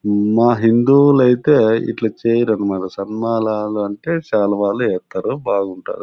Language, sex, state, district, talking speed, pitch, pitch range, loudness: Telugu, male, Andhra Pradesh, Anantapur, 110 wpm, 110 Hz, 100-120 Hz, -16 LUFS